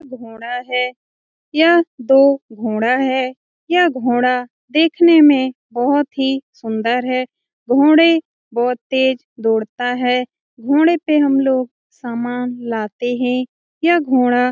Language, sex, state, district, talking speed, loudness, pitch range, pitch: Hindi, female, Bihar, Lakhisarai, 120 wpm, -16 LUFS, 245-285 Hz, 255 Hz